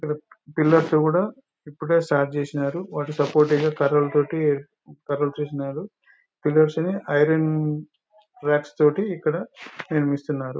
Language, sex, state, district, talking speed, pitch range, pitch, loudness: Telugu, male, Telangana, Nalgonda, 105 wpm, 145-165 Hz, 150 Hz, -23 LUFS